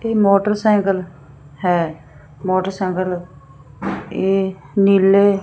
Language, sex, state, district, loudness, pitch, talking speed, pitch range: Punjabi, female, Punjab, Fazilka, -18 LUFS, 185 Hz, 75 wpm, 145-195 Hz